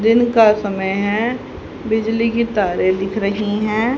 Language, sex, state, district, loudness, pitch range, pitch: Hindi, female, Haryana, Rohtak, -17 LUFS, 205-230 Hz, 215 Hz